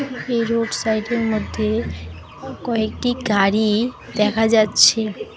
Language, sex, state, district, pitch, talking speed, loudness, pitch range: Bengali, female, West Bengal, Alipurduar, 220 Hz, 110 wpm, -19 LUFS, 215-235 Hz